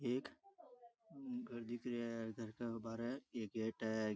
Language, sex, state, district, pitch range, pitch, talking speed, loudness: Rajasthani, male, Rajasthan, Churu, 115-130 Hz, 120 Hz, 160 wpm, -45 LUFS